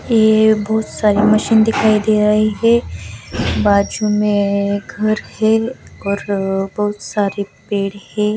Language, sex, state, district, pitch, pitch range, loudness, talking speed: Hindi, female, Bihar, West Champaran, 210 Hz, 200-215 Hz, -16 LUFS, 120 wpm